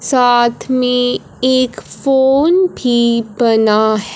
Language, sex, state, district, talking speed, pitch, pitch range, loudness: Hindi, male, Punjab, Fazilka, 85 wpm, 245 Hz, 230-260 Hz, -13 LUFS